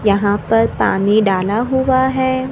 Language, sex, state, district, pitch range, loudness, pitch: Hindi, female, Maharashtra, Gondia, 205-260 Hz, -15 LUFS, 225 Hz